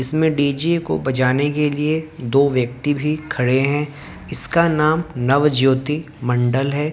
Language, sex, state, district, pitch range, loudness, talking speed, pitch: Hindi, male, Haryana, Jhajjar, 130-150 Hz, -19 LUFS, 140 wpm, 145 Hz